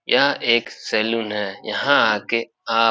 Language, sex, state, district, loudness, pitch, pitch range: Hindi, male, Bihar, Supaul, -20 LUFS, 115 Hz, 105-115 Hz